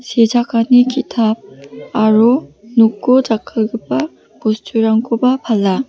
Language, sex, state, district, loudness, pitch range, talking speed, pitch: Garo, female, Meghalaya, West Garo Hills, -15 LUFS, 220-250 Hz, 70 wpm, 230 Hz